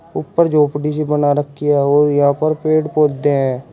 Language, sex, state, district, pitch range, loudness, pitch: Hindi, male, Uttar Pradesh, Shamli, 145-155 Hz, -15 LUFS, 145 Hz